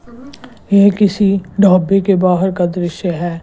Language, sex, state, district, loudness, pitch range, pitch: Hindi, female, Gujarat, Gandhinagar, -13 LUFS, 180-205 Hz, 195 Hz